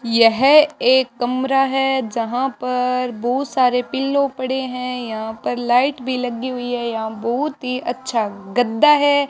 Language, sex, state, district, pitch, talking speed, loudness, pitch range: Hindi, male, Rajasthan, Bikaner, 250 Hz, 155 wpm, -19 LUFS, 240-270 Hz